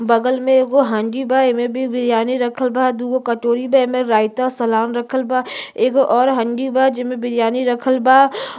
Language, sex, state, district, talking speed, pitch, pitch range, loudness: Bhojpuri, female, Uttar Pradesh, Ghazipur, 180 wpm, 250 Hz, 240-260 Hz, -17 LUFS